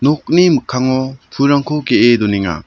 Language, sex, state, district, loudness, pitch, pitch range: Garo, male, Meghalaya, South Garo Hills, -13 LUFS, 130 Hz, 120-145 Hz